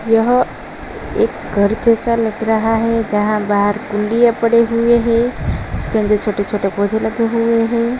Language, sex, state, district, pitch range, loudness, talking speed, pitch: Hindi, female, Uttar Pradesh, Jalaun, 210-230 Hz, -16 LUFS, 150 wpm, 225 Hz